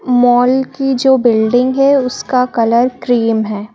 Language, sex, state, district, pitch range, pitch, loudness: Hindi, female, Madhya Pradesh, Bhopal, 235-260 Hz, 245 Hz, -13 LUFS